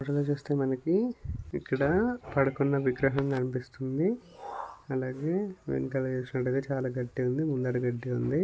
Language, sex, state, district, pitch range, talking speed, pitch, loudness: Telugu, male, Telangana, Nalgonda, 130-145 Hz, 135 wpm, 135 Hz, -30 LUFS